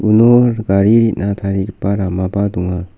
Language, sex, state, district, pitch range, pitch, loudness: Garo, male, Meghalaya, South Garo Hills, 95-110 Hz, 100 Hz, -14 LUFS